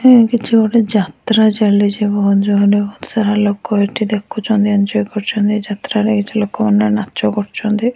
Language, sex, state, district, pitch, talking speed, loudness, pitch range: Odia, female, Odisha, Nuapada, 210 Hz, 145 wpm, -15 LUFS, 205-220 Hz